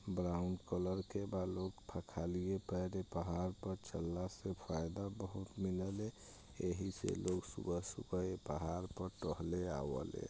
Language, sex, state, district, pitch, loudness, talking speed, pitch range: Bhojpuri, male, Bihar, East Champaran, 90 Hz, -43 LUFS, 145 wpm, 90-95 Hz